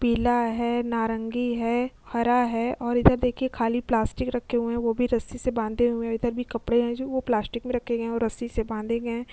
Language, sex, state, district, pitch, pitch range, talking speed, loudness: Hindi, female, Uttar Pradesh, Jyotiba Phule Nagar, 235 Hz, 230-245 Hz, 250 wpm, -26 LUFS